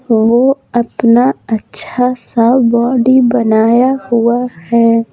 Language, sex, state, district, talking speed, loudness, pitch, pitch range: Hindi, female, Bihar, Patna, 95 wpm, -12 LUFS, 240 Hz, 230-250 Hz